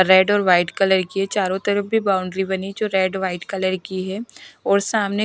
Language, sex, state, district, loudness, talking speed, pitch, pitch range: Hindi, female, Bihar, West Champaran, -20 LUFS, 215 wpm, 190 Hz, 185-200 Hz